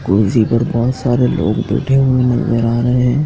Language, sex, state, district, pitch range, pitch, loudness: Hindi, male, Madhya Pradesh, Dhar, 115-125 Hz, 120 Hz, -14 LUFS